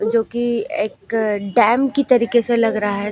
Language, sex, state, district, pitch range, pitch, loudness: Hindi, female, Uttar Pradesh, Lucknow, 210-240 Hz, 230 Hz, -18 LUFS